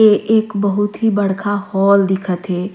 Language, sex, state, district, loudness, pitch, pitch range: Surgujia, female, Chhattisgarh, Sarguja, -16 LUFS, 200 Hz, 195-210 Hz